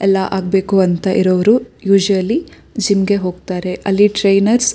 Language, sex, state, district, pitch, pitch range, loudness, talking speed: Kannada, female, Karnataka, Shimoga, 195 Hz, 190-205 Hz, -15 LUFS, 140 wpm